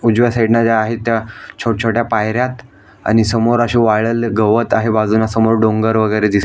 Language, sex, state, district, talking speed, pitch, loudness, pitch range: Marathi, male, Maharashtra, Aurangabad, 165 wpm, 115 Hz, -15 LUFS, 110-115 Hz